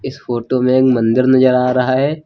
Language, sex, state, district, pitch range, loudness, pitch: Hindi, male, Uttar Pradesh, Lucknow, 125-130 Hz, -14 LUFS, 130 Hz